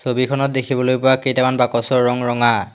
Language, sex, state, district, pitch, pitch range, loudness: Assamese, male, Assam, Hailakandi, 130 Hz, 125-130 Hz, -17 LUFS